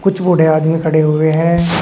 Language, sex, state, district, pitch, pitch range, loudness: Hindi, male, Uttar Pradesh, Shamli, 160 Hz, 155-175 Hz, -13 LUFS